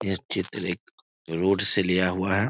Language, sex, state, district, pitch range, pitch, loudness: Hindi, male, Bihar, East Champaran, 90-100 Hz, 95 Hz, -25 LUFS